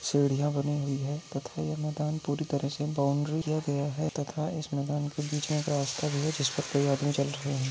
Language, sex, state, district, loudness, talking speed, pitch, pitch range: Hindi, male, Maharashtra, Nagpur, -30 LUFS, 200 wpm, 145 Hz, 140-150 Hz